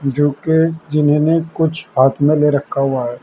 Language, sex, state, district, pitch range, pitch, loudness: Hindi, male, Uttar Pradesh, Saharanpur, 135-160 Hz, 145 Hz, -15 LUFS